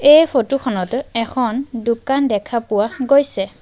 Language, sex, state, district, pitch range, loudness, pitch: Assamese, female, Assam, Sonitpur, 230-275 Hz, -17 LUFS, 255 Hz